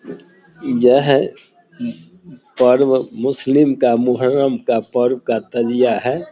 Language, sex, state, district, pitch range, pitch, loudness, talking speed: Hindi, male, Bihar, Samastipur, 125-150 Hz, 130 Hz, -16 LUFS, 115 wpm